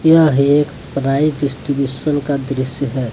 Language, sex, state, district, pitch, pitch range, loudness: Hindi, male, Jharkhand, Deoghar, 140 Hz, 135-145 Hz, -17 LUFS